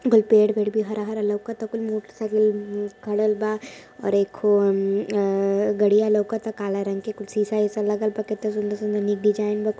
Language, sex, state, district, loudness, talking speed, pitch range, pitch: Hindi, female, Uttar Pradesh, Varanasi, -23 LUFS, 180 wpm, 205-215 Hz, 210 Hz